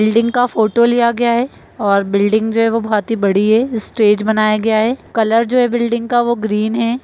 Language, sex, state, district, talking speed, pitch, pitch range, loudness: Hindi, female, Uttar Pradesh, Etah, 230 wpm, 225 Hz, 215-235 Hz, -15 LUFS